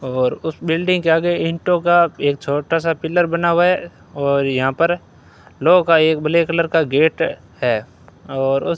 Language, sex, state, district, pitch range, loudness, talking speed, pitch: Hindi, male, Rajasthan, Bikaner, 140-170 Hz, -17 LUFS, 185 wpm, 165 Hz